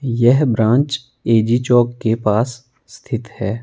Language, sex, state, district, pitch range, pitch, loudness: Hindi, male, Himachal Pradesh, Shimla, 115-125 Hz, 120 Hz, -17 LUFS